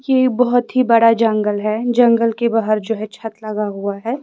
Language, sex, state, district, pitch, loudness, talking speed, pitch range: Hindi, female, Himachal Pradesh, Shimla, 225 Hz, -16 LUFS, 215 wpm, 215-240 Hz